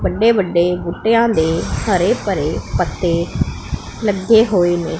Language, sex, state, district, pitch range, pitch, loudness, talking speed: Punjabi, female, Punjab, Pathankot, 170-220 Hz, 180 Hz, -16 LUFS, 120 wpm